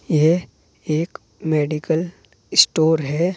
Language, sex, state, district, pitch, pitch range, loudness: Hindi, male, Uttar Pradesh, Saharanpur, 160 Hz, 150-165 Hz, -19 LUFS